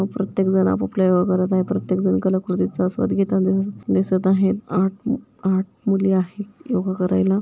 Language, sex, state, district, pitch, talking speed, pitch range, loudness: Marathi, female, Maharashtra, Dhule, 190 Hz, 160 wpm, 185-195 Hz, -20 LUFS